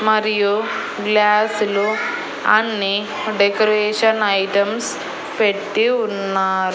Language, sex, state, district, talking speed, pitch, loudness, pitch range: Telugu, female, Andhra Pradesh, Annamaya, 70 wpm, 210 Hz, -18 LUFS, 200-215 Hz